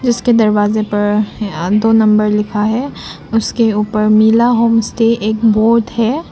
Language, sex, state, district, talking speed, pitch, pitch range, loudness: Hindi, female, Arunachal Pradesh, Lower Dibang Valley, 140 wpm, 220 Hz, 210-230 Hz, -13 LUFS